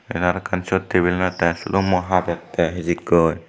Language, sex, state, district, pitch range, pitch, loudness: Chakma, male, Tripura, Dhalai, 85-95 Hz, 90 Hz, -20 LUFS